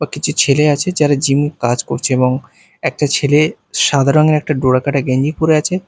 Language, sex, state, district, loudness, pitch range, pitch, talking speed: Bengali, male, Bihar, Katihar, -14 LUFS, 135-150 Hz, 145 Hz, 195 wpm